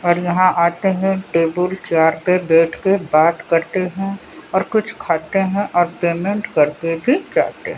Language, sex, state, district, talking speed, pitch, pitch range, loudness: Hindi, female, Odisha, Sambalpur, 160 wpm, 180 Hz, 165-195 Hz, -17 LUFS